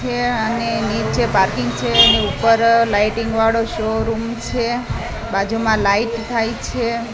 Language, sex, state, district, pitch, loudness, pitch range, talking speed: Gujarati, female, Gujarat, Gandhinagar, 230 Hz, -17 LUFS, 220-230 Hz, 125 wpm